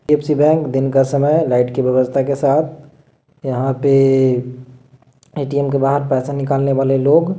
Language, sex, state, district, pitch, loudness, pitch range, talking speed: Hindi, male, Bihar, Gaya, 135 Hz, -16 LUFS, 130-145 Hz, 170 wpm